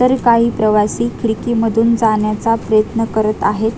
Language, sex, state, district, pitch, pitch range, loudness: Marathi, female, Maharashtra, Dhule, 225 Hz, 215-230 Hz, -15 LUFS